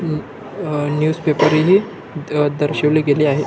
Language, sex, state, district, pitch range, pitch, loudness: Marathi, male, Maharashtra, Nagpur, 150-155 Hz, 150 Hz, -17 LUFS